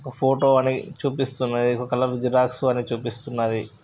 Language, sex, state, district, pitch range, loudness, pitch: Telugu, male, Andhra Pradesh, Guntur, 120-135 Hz, -23 LUFS, 125 Hz